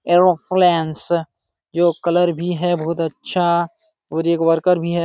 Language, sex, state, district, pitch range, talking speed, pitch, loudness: Hindi, male, Uttar Pradesh, Jalaun, 165-175 Hz, 145 wpm, 170 Hz, -18 LUFS